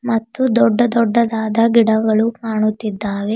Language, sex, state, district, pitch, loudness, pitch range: Kannada, female, Karnataka, Bidar, 225 Hz, -16 LUFS, 220-235 Hz